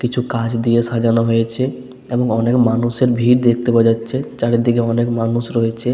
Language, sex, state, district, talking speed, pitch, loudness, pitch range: Bengali, male, West Bengal, Paschim Medinipur, 160 wpm, 120 Hz, -16 LUFS, 115-125 Hz